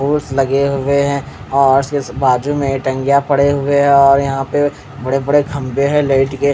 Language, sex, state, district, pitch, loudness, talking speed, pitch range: Hindi, male, Odisha, Khordha, 140 Hz, -14 LUFS, 165 wpm, 135-140 Hz